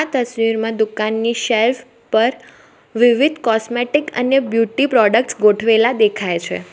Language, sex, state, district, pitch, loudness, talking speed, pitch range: Gujarati, female, Gujarat, Valsad, 230 Hz, -16 LUFS, 115 wpm, 220-245 Hz